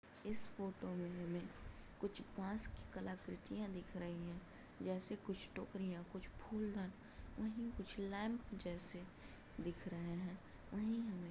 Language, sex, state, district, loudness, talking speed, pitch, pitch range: Hindi, male, Uttar Pradesh, Muzaffarnagar, -44 LUFS, 140 wpm, 195 Hz, 180-210 Hz